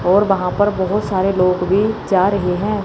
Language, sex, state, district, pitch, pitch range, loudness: Hindi, female, Chandigarh, Chandigarh, 195 Hz, 185-205 Hz, -16 LUFS